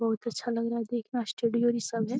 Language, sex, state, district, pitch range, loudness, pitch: Hindi, female, Bihar, Jamui, 230-240 Hz, -30 LUFS, 235 Hz